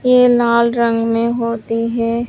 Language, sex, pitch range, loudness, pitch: Hindi, female, 230-235 Hz, -15 LUFS, 235 Hz